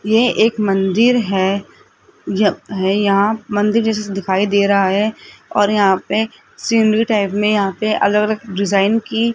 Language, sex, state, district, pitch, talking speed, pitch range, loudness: Hindi, female, Rajasthan, Jaipur, 205 Hz, 160 wpm, 195-220 Hz, -16 LUFS